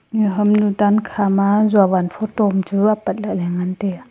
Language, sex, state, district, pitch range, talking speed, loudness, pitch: Wancho, female, Arunachal Pradesh, Longding, 190-210 Hz, 205 wpm, -17 LUFS, 205 Hz